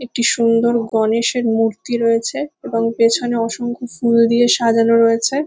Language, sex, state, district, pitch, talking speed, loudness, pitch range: Bengali, female, West Bengal, Kolkata, 230 Hz, 130 wpm, -16 LUFS, 230-240 Hz